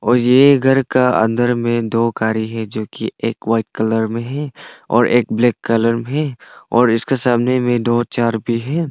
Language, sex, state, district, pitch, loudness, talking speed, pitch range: Hindi, male, Arunachal Pradesh, Longding, 120 Hz, -16 LUFS, 195 wpm, 115-125 Hz